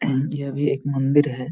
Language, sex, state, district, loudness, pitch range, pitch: Hindi, male, Jharkhand, Jamtara, -22 LUFS, 135-145 Hz, 140 Hz